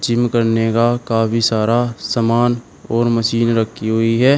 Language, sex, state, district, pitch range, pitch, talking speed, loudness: Hindi, male, Uttar Pradesh, Shamli, 115-120 Hz, 115 Hz, 150 wpm, -16 LUFS